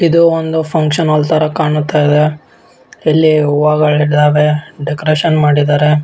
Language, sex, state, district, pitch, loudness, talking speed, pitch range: Kannada, male, Karnataka, Bellary, 150 Hz, -12 LUFS, 110 wpm, 150-155 Hz